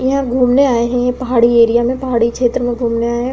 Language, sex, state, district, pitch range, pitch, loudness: Hindi, female, Uttar Pradesh, Deoria, 235-255 Hz, 245 Hz, -14 LUFS